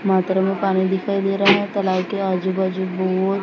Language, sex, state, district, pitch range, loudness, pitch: Hindi, female, Maharashtra, Gondia, 185-195 Hz, -20 LUFS, 190 Hz